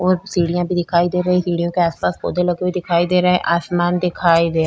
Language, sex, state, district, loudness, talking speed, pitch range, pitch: Hindi, female, Bihar, Vaishali, -18 LUFS, 295 wpm, 170-180 Hz, 175 Hz